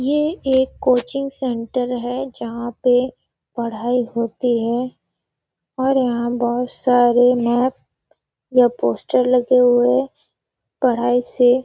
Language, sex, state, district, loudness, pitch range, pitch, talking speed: Hindi, female, Chhattisgarh, Sarguja, -19 LUFS, 240-255 Hz, 245 Hz, 115 wpm